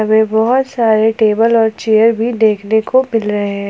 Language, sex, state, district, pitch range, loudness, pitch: Hindi, female, Jharkhand, Palamu, 215-230 Hz, -13 LUFS, 220 Hz